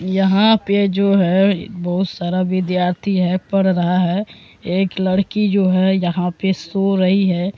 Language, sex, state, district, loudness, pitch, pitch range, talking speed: Hindi, female, Bihar, Supaul, -17 LUFS, 190 Hz, 180-195 Hz, 160 wpm